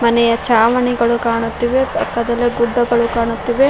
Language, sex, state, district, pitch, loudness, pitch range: Kannada, female, Karnataka, Koppal, 235 Hz, -15 LUFS, 235-245 Hz